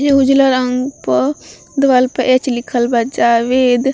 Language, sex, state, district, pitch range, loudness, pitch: Bhojpuri, female, Bihar, Gopalganj, 240-270 Hz, -14 LUFS, 255 Hz